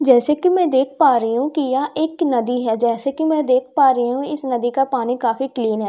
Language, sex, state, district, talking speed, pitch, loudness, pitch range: Hindi, female, Bihar, Katihar, 265 wpm, 265 Hz, -18 LUFS, 240-295 Hz